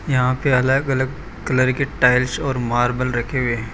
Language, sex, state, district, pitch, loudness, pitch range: Hindi, male, Gujarat, Valsad, 130 Hz, -19 LUFS, 125-135 Hz